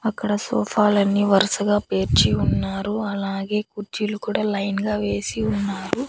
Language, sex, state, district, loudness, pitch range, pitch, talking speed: Telugu, female, Andhra Pradesh, Annamaya, -22 LUFS, 195-210 Hz, 205 Hz, 120 wpm